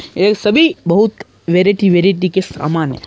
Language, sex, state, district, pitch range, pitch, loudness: Hindi, female, Andhra Pradesh, Anantapur, 175-205 Hz, 190 Hz, -13 LUFS